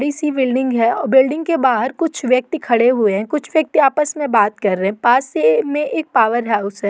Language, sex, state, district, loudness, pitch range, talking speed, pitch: Hindi, female, Uttar Pradesh, Etah, -16 LUFS, 225-295 Hz, 245 wpm, 255 Hz